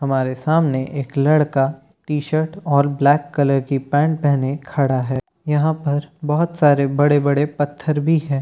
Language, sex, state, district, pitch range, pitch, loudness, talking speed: Hindi, male, Bihar, Katihar, 140-150 Hz, 145 Hz, -18 LUFS, 155 wpm